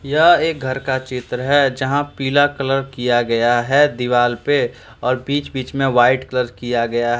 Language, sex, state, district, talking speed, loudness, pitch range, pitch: Hindi, male, Jharkhand, Deoghar, 200 wpm, -17 LUFS, 120-140 Hz, 130 Hz